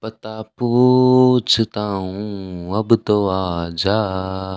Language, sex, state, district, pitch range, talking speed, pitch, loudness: Hindi, male, Rajasthan, Bikaner, 95-115 Hz, 80 wpm, 105 Hz, -18 LUFS